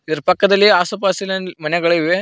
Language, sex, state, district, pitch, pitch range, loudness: Kannada, male, Karnataka, Koppal, 180 Hz, 170-195 Hz, -16 LUFS